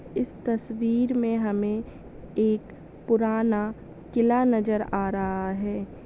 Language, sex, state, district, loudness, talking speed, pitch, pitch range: Hindi, female, Andhra Pradesh, Chittoor, -26 LUFS, 355 wpm, 215 Hz, 205-230 Hz